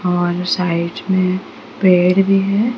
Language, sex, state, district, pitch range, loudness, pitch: Hindi, female, Odisha, Sambalpur, 180-195 Hz, -16 LUFS, 185 Hz